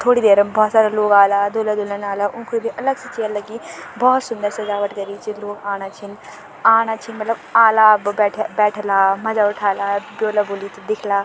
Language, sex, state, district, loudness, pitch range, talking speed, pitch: Garhwali, female, Uttarakhand, Tehri Garhwal, -18 LUFS, 200-220 Hz, 185 wpm, 210 Hz